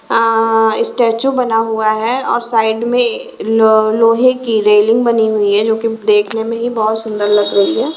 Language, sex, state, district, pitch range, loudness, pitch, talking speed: Hindi, female, Himachal Pradesh, Shimla, 220-235 Hz, -13 LUFS, 225 Hz, 190 wpm